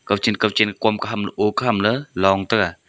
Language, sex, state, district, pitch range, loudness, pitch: Wancho, male, Arunachal Pradesh, Longding, 95-110 Hz, -20 LUFS, 105 Hz